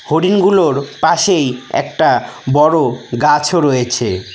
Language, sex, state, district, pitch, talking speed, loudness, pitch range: Bengali, male, West Bengal, Cooch Behar, 150 Hz, 85 wpm, -14 LUFS, 125-160 Hz